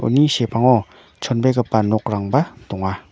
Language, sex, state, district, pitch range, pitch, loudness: Garo, male, Meghalaya, North Garo Hills, 105-130 Hz, 115 Hz, -19 LUFS